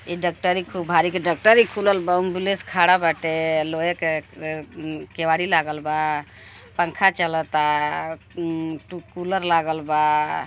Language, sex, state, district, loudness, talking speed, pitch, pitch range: Bhojpuri, female, Uttar Pradesh, Gorakhpur, -21 LUFS, 155 wpm, 165 Hz, 155-180 Hz